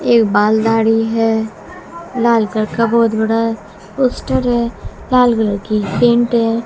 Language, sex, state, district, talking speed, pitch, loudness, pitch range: Hindi, female, Bihar, West Champaran, 135 wpm, 225 Hz, -15 LUFS, 220-235 Hz